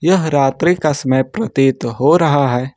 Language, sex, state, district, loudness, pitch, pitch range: Hindi, male, Jharkhand, Ranchi, -15 LUFS, 140 Hz, 130-170 Hz